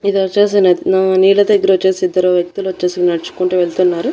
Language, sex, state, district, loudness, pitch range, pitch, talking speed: Telugu, female, Andhra Pradesh, Annamaya, -13 LUFS, 180-195 Hz, 190 Hz, 115 wpm